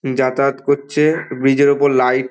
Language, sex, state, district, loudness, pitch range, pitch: Bengali, male, West Bengal, Dakshin Dinajpur, -15 LUFS, 130-140 Hz, 140 Hz